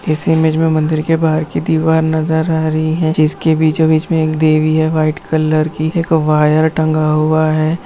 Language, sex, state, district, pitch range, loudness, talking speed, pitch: Hindi, female, Bihar, Jamui, 155-160 Hz, -14 LUFS, 200 wpm, 155 Hz